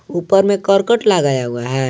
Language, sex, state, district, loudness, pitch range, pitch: Hindi, male, Jharkhand, Garhwa, -15 LUFS, 135-195 Hz, 185 Hz